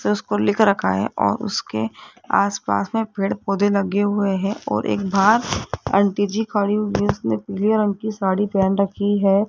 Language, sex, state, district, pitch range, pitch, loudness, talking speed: Hindi, female, Rajasthan, Jaipur, 190-205 Hz, 200 Hz, -20 LUFS, 170 wpm